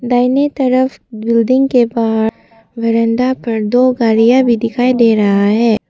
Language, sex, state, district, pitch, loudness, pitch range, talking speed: Hindi, female, Arunachal Pradesh, Papum Pare, 230 Hz, -13 LUFS, 225-255 Hz, 140 wpm